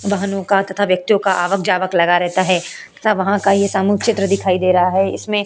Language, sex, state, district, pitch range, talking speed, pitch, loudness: Hindi, female, Uttar Pradesh, Hamirpur, 185-200 Hz, 240 wpm, 195 Hz, -16 LUFS